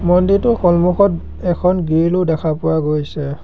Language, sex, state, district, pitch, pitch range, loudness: Assamese, male, Assam, Sonitpur, 175 Hz, 160-180 Hz, -16 LUFS